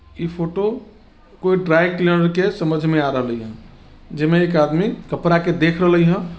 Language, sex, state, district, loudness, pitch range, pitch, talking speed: Bajjika, male, Bihar, Vaishali, -18 LUFS, 160-180 Hz, 170 Hz, 190 wpm